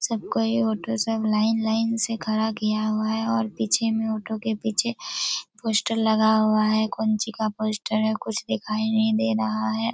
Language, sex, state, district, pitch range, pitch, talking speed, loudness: Hindi, female, Chhattisgarh, Raigarh, 215-225 Hz, 220 Hz, 185 wpm, -24 LUFS